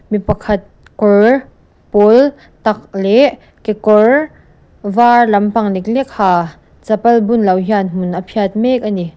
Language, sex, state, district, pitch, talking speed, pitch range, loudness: Mizo, female, Mizoram, Aizawl, 215 Hz, 125 wpm, 200-235 Hz, -13 LUFS